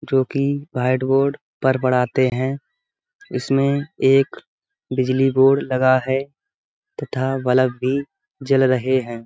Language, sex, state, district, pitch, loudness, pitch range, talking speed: Hindi, male, Uttar Pradesh, Budaun, 135 Hz, -19 LUFS, 130-140 Hz, 115 wpm